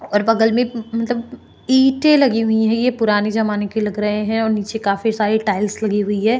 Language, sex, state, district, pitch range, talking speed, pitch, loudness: Hindi, female, Uttarakhand, Tehri Garhwal, 210-230 Hz, 235 wpm, 220 Hz, -17 LUFS